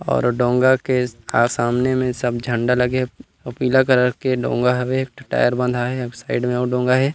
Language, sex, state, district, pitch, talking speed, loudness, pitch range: Chhattisgarhi, male, Chhattisgarh, Rajnandgaon, 125 Hz, 200 wpm, -19 LUFS, 125-130 Hz